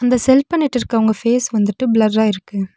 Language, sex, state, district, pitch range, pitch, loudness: Tamil, female, Tamil Nadu, Nilgiris, 215-250 Hz, 230 Hz, -16 LUFS